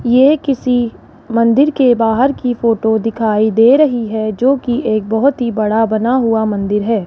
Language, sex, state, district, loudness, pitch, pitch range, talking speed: Hindi, female, Rajasthan, Jaipur, -14 LUFS, 230 Hz, 220-255 Hz, 170 wpm